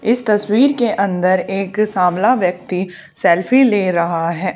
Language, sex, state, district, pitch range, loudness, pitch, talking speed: Hindi, female, Haryana, Charkhi Dadri, 180-215 Hz, -16 LUFS, 195 Hz, 145 wpm